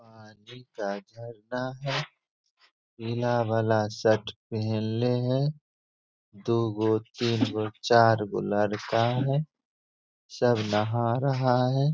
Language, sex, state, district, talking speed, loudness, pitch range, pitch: Hindi, male, Bihar, Begusarai, 95 wpm, -27 LUFS, 105-125 Hz, 115 Hz